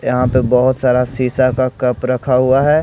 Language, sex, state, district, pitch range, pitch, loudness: Hindi, male, Odisha, Malkangiri, 125-130 Hz, 130 Hz, -14 LUFS